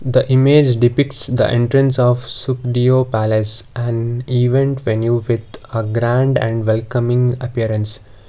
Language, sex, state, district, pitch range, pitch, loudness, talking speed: English, male, Karnataka, Bangalore, 115-130 Hz, 120 Hz, -16 LUFS, 125 wpm